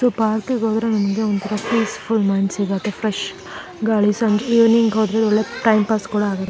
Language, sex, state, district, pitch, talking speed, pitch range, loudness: Kannada, female, Karnataka, Shimoga, 215 Hz, 175 wpm, 210-225 Hz, -19 LUFS